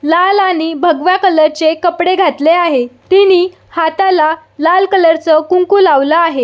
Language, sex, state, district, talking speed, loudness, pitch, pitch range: Marathi, female, Maharashtra, Solapur, 130 wpm, -11 LUFS, 335 Hz, 315-370 Hz